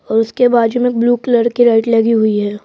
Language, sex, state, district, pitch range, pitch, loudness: Hindi, female, Madhya Pradesh, Bhopal, 225-240 Hz, 230 Hz, -13 LUFS